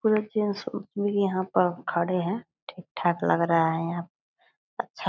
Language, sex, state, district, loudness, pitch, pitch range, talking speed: Hindi, female, Bihar, Purnia, -27 LUFS, 180 Hz, 170-205 Hz, 165 wpm